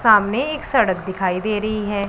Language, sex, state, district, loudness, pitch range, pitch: Hindi, female, Punjab, Pathankot, -20 LUFS, 190-215 Hz, 210 Hz